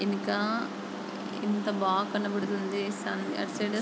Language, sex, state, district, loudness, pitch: Telugu, female, Andhra Pradesh, Guntur, -31 LUFS, 195 Hz